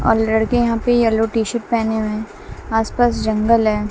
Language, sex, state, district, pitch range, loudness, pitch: Hindi, female, Bihar, West Champaran, 220-230 Hz, -18 LUFS, 225 Hz